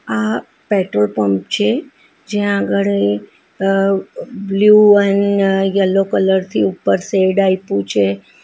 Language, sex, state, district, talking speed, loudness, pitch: Gujarati, female, Gujarat, Valsad, 120 wpm, -15 LUFS, 190 Hz